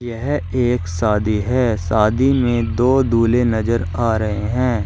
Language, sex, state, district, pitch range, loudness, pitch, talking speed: Hindi, male, Uttar Pradesh, Shamli, 105-125 Hz, -18 LUFS, 115 Hz, 150 wpm